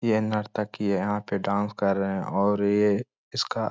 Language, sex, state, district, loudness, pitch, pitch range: Hindi, male, Bihar, Lakhisarai, -26 LUFS, 105 Hz, 100-105 Hz